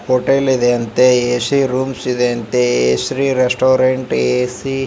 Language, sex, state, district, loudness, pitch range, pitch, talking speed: Kannada, male, Karnataka, Bijapur, -15 LUFS, 120-130 Hz, 125 Hz, 160 wpm